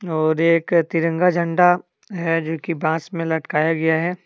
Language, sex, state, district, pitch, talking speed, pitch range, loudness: Hindi, male, Jharkhand, Deoghar, 165 Hz, 170 wpm, 160-175 Hz, -19 LUFS